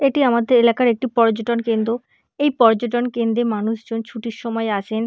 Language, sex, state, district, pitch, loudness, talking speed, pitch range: Bengali, female, West Bengal, Purulia, 230 Hz, -19 LUFS, 165 wpm, 225-240 Hz